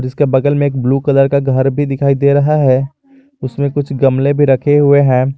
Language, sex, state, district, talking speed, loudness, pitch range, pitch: Hindi, male, Jharkhand, Garhwa, 225 wpm, -12 LUFS, 135-145 Hz, 140 Hz